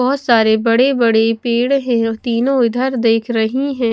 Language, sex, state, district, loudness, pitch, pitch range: Hindi, female, Chhattisgarh, Raipur, -15 LUFS, 235 Hz, 225-260 Hz